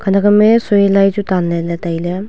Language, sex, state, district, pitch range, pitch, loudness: Wancho, female, Arunachal Pradesh, Longding, 175-205 Hz, 195 Hz, -13 LUFS